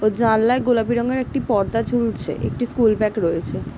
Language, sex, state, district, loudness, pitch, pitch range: Bengali, female, West Bengal, Jhargram, -20 LUFS, 230 Hz, 215-245 Hz